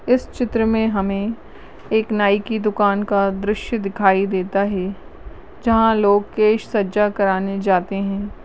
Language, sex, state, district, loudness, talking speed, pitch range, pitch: Hindi, female, Uttarakhand, Uttarkashi, -19 LUFS, 140 wpm, 195-220 Hz, 205 Hz